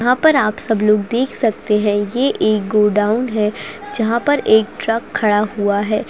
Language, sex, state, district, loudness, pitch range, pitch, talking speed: Hindi, female, Uttarakhand, Uttarkashi, -16 LUFS, 210-235 Hz, 215 Hz, 185 wpm